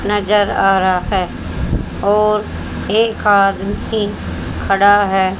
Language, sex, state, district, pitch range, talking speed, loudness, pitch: Hindi, female, Haryana, Charkhi Dadri, 195-210 Hz, 100 wpm, -15 LUFS, 205 Hz